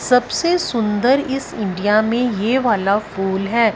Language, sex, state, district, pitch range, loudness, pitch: Hindi, female, Punjab, Fazilka, 205-250 Hz, -18 LUFS, 230 Hz